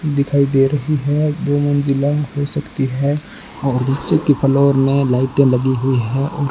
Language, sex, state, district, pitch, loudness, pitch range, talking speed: Hindi, male, Rajasthan, Bikaner, 140 Hz, -17 LUFS, 135-145 Hz, 185 wpm